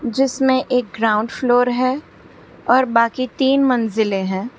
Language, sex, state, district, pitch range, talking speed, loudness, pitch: Hindi, female, Gujarat, Valsad, 225-260 Hz, 130 wpm, -17 LUFS, 250 Hz